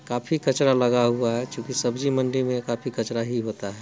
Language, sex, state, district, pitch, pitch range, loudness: Hindi, male, Bihar, Muzaffarpur, 120 Hz, 120-130 Hz, -24 LUFS